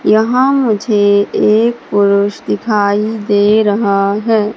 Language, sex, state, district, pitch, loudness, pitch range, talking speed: Hindi, female, Madhya Pradesh, Katni, 210 Hz, -12 LUFS, 205-220 Hz, 105 wpm